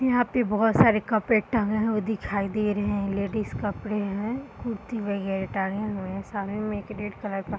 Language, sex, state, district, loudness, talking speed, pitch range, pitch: Hindi, female, Bihar, Purnia, -27 LUFS, 190 wpm, 200-220 Hz, 210 Hz